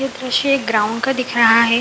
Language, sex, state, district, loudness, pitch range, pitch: Hindi, female, Bihar, Samastipur, -16 LUFS, 230-265 Hz, 250 Hz